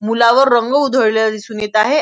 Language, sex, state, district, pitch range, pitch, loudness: Marathi, female, Maharashtra, Nagpur, 215-265 Hz, 235 Hz, -14 LUFS